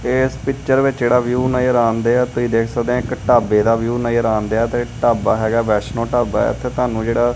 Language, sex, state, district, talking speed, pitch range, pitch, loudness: Punjabi, male, Punjab, Kapurthala, 220 wpm, 115-125 Hz, 120 Hz, -17 LUFS